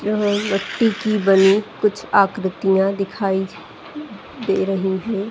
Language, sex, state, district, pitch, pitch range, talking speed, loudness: Hindi, female, Uttar Pradesh, Etah, 200 Hz, 195-210 Hz, 115 wpm, -19 LUFS